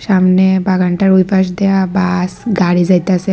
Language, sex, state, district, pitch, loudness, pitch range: Bengali, female, Tripura, West Tripura, 185 Hz, -12 LUFS, 180-190 Hz